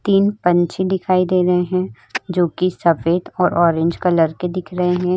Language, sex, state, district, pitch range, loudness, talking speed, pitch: Hindi, female, Uttar Pradesh, Budaun, 175-185 Hz, -18 LUFS, 175 wpm, 180 Hz